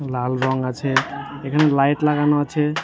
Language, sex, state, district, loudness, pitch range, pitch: Bengali, male, West Bengal, Jhargram, -20 LUFS, 130-150 Hz, 140 Hz